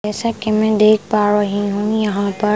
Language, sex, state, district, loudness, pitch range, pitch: Hindi, female, Punjab, Pathankot, -16 LUFS, 205-215 Hz, 210 Hz